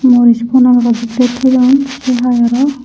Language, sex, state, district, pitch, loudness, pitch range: Chakma, female, Tripura, Unakoti, 250 Hz, -11 LUFS, 240-260 Hz